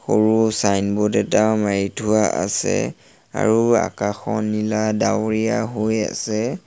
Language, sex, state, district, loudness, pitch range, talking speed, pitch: Assamese, male, Assam, Sonitpur, -20 LUFS, 105-110 Hz, 110 wpm, 110 Hz